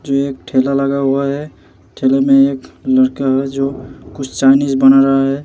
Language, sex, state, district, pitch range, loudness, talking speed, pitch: Hindi, male, Bihar, Vaishali, 135-140 Hz, -14 LUFS, 185 wpm, 135 Hz